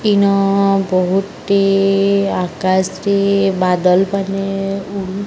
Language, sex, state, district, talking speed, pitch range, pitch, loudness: Odia, female, Odisha, Sambalpur, 100 wpm, 190-200 Hz, 195 Hz, -15 LUFS